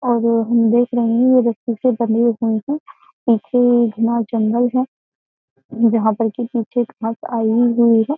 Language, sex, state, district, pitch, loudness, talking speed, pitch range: Hindi, female, Uttar Pradesh, Jyotiba Phule Nagar, 235 Hz, -17 LUFS, 170 wpm, 230-245 Hz